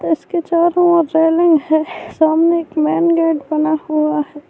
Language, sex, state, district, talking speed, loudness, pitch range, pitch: Urdu, female, Bihar, Saharsa, 175 wpm, -15 LUFS, 310-335 Hz, 325 Hz